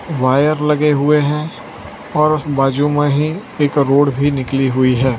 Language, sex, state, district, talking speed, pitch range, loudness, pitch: Hindi, male, Gujarat, Valsad, 175 wpm, 135-150 Hz, -15 LUFS, 145 Hz